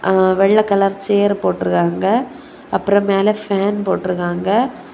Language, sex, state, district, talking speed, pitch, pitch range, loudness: Tamil, female, Tamil Nadu, Kanyakumari, 120 wpm, 195 Hz, 185-205 Hz, -16 LUFS